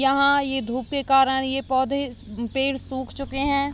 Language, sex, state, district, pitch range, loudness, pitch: Hindi, female, Uttar Pradesh, Jalaun, 260-275 Hz, -23 LUFS, 270 Hz